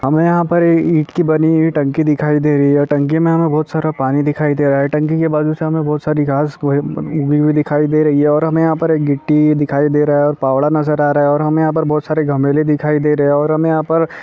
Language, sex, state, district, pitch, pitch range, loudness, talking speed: Hindi, male, Chhattisgarh, Bastar, 150 Hz, 145-155 Hz, -14 LUFS, 265 wpm